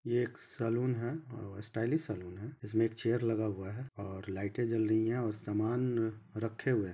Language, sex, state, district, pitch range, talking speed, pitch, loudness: Hindi, male, Chhattisgarh, Rajnandgaon, 105-120 Hz, 205 wpm, 115 Hz, -35 LUFS